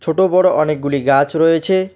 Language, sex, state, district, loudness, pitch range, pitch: Bengali, male, West Bengal, Alipurduar, -14 LUFS, 145-185 Hz, 165 Hz